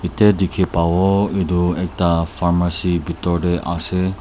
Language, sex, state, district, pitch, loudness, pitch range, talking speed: Nagamese, male, Nagaland, Dimapur, 90 Hz, -18 LUFS, 85-95 Hz, 130 wpm